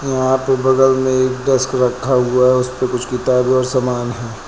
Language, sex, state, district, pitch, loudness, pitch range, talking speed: Hindi, male, Uttar Pradesh, Lucknow, 130 Hz, -16 LUFS, 125-130 Hz, 200 wpm